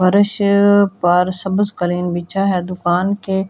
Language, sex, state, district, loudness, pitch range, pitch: Hindi, female, Delhi, New Delhi, -16 LUFS, 180-200 Hz, 190 Hz